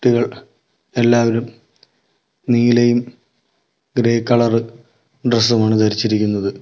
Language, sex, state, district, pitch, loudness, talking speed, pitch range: Malayalam, male, Kerala, Kollam, 115 Hz, -16 LUFS, 55 wpm, 115-120 Hz